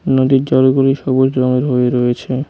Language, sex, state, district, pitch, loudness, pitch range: Bengali, male, West Bengal, Cooch Behar, 130 Hz, -14 LUFS, 125-135 Hz